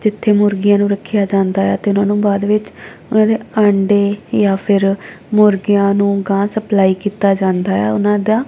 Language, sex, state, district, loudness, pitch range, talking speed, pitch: Punjabi, female, Punjab, Kapurthala, -14 LUFS, 195-210 Hz, 175 wpm, 200 Hz